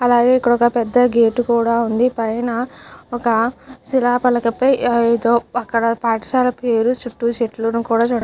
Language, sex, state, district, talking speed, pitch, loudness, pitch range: Telugu, female, Andhra Pradesh, Chittoor, 110 wpm, 240 Hz, -17 LUFS, 230-245 Hz